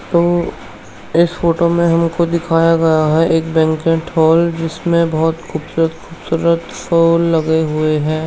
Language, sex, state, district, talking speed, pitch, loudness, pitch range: Hindi, male, Uttarakhand, Tehri Garhwal, 130 wpm, 165 Hz, -15 LUFS, 160-170 Hz